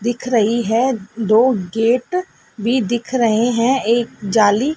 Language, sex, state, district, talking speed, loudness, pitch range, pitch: Hindi, female, Madhya Pradesh, Dhar, 140 wpm, -17 LUFS, 225-250 Hz, 235 Hz